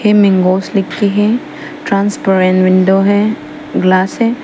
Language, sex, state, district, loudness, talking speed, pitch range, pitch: Hindi, female, Arunachal Pradesh, Papum Pare, -12 LUFS, 135 wpm, 190-230 Hz, 205 Hz